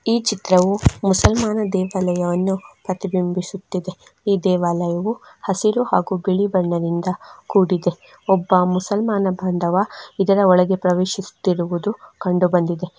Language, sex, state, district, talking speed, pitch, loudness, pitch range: Kannada, female, Karnataka, Chamarajanagar, 90 wpm, 185 Hz, -19 LUFS, 180-200 Hz